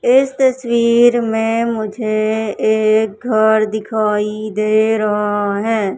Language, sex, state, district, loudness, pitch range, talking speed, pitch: Hindi, male, Madhya Pradesh, Katni, -15 LUFS, 215-230 Hz, 100 wpm, 220 Hz